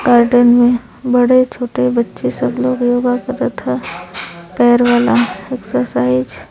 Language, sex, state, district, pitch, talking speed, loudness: Hindi, female, Uttar Pradesh, Varanasi, 240 Hz, 130 wpm, -14 LUFS